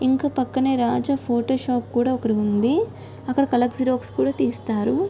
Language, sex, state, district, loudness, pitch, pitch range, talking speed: Telugu, female, Andhra Pradesh, Guntur, -22 LUFS, 255 Hz, 235-265 Hz, 155 wpm